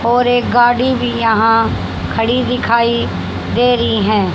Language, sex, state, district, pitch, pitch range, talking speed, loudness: Hindi, female, Haryana, Rohtak, 235 Hz, 225-245 Hz, 140 wpm, -14 LUFS